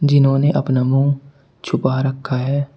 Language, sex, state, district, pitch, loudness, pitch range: Hindi, male, Uttar Pradesh, Shamli, 135 Hz, -18 LUFS, 130-140 Hz